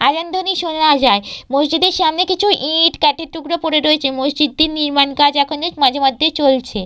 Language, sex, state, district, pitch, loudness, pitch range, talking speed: Bengali, female, West Bengal, Purulia, 300 Hz, -15 LUFS, 280-330 Hz, 165 wpm